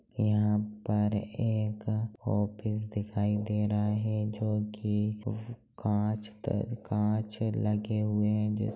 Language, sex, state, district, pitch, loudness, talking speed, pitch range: Hindi, male, Bihar, Jahanabad, 105 Hz, -31 LUFS, 125 wpm, 105-110 Hz